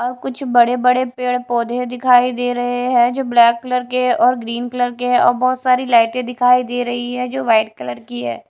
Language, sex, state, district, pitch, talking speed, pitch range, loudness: Hindi, female, Odisha, Khordha, 245 Hz, 225 wpm, 240-250 Hz, -16 LUFS